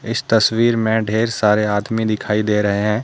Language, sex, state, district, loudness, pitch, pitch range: Hindi, male, Jharkhand, Deoghar, -17 LUFS, 110 Hz, 105-115 Hz